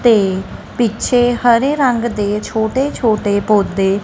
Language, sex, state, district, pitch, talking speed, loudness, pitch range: Punjabi, female, Punjab, Kapurthala, 225 Hz, 120 wpm, -15 LUFS, 205-245 Hz